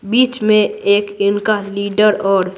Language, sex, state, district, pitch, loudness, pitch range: Hindi, female, Bihar, Patna, 205 Hz, -15 LUFS, 200-215 Hz